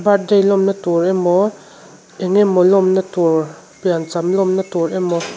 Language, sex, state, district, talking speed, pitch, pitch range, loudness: Mizo, female, Mizoram, Aizawl, 135 wpm, 185 Hz, 175-195 Hz, -16 LUFS